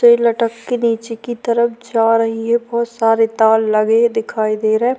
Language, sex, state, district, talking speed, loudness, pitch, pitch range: Hindi, female, Uttarakhand, Tehri Garhwal, 215 wpm, -16 LUFS, 230 Hz, 225-235 Hz